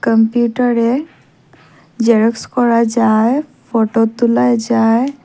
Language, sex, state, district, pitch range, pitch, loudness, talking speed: Bengali, female, Assam, Hailakandi, 225-240 Hz, 230 Hz, -14 LUFS, 80 wpm